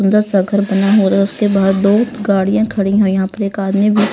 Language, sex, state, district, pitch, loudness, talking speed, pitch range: Hindi, female, Haryana, Rohtak, 200 Hz, -14 LUFS, 245 wpm, 195-210 Hz